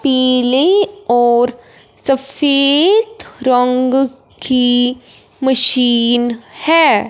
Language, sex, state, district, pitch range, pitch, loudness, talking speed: Hindi, male, Punjab, Fazilka, 245-285 Hz, 260 Hz, -12 LUFS, 60 wpm